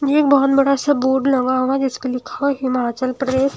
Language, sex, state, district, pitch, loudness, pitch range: Hindi, female, Himachal Pradesh, Shimla, 270 Hz, -18 LUFS, 255-280 Hz